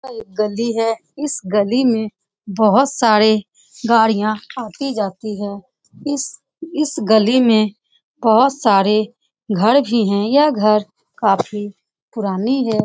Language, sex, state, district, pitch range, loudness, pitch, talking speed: Hindi, female, Bihar, Saran, 210-255 Hz, -17 LUFS, 220 Hz, 125 wpm